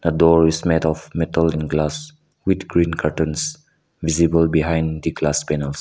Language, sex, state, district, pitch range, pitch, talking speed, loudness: English, male, Nagaland, Kohima, 80-85 Hz, 80 Hz, 155 wpm, -19 LUFS